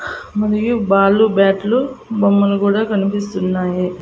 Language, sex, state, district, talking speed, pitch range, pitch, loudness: Telugu, female, Andhra Pradesh, Annamaya, 90 wpm, 195-220 Hz, 200 Hz, -16 LUFS